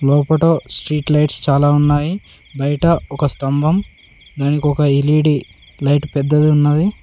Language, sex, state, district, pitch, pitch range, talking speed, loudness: Telugu, male, Telangana, Mahabubabad, 145 Hz, 140-150 Hz, 120 wpm, -16 LUFS